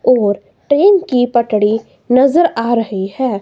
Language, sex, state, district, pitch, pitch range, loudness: Hindi, female, Himachal Pradesh, Shimla, 240 Hz, 215-265 Hz, -14 LUFS